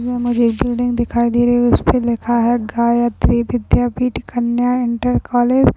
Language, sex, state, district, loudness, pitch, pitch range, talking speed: Hindi, female, Uttar Pradesh, Gorakhpur, -16 LUFS, 240 Hz, 235-245 Hz, 175 wpm